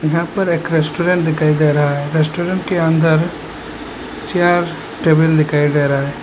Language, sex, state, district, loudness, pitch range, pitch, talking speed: Hindi, male, Assam, Hailakandi, -15 LUFS, 150-170 Hz, 160 Hz, 165 wpm